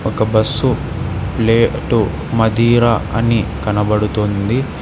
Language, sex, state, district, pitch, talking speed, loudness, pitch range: Telugu, male, Telangana, Hyderabad, 110 Hz, 75 wpm, -16 LUFS, 105-115 Hz